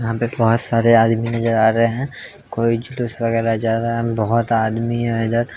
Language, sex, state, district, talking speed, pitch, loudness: Hindi, male, Bihar, Araria, 215 wpm, 115 Hz, -18 LUFS